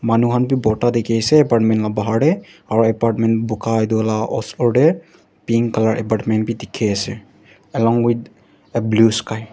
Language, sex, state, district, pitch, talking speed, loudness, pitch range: Nagamese, male, Nagaland, Dimapur, 115 Hz, 185 wpm, -18 LUFS, 110-120 Hz